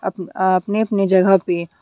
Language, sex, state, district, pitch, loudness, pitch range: Hindi, female, Jharkhand, Deoghar, 190 Hz, -17 LUFS, 180-195 Hz